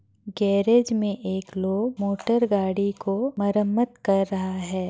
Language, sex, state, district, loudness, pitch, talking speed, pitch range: Hindi, female, Bihar, Madhepura, -24 LUFS, 200 Hz, 120 wpm, 190-215 Hz